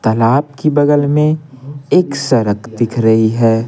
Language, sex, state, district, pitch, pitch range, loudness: Hindi, male, Bihar, Patna, 135 Hz, 115-145 Hz, -13 LUFS